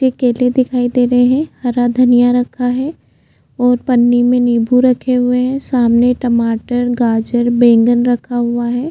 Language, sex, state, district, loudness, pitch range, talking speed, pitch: Hindi, female, Chhattisgarh, Jashpur, -13 LUFS, 240-250 Hz, 160 wpm, 245 Hz